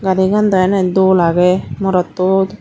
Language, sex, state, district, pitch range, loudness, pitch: Chakma, female, Tripura, Dhalai, 180-190 Hz, -14 LUFS, 190 Hz